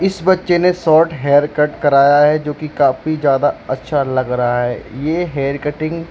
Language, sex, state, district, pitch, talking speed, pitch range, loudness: Hindi, male, Jharkhand, Jamtara, 150 Hz, 185 wpm, 140-160 Hz, -15 LUFS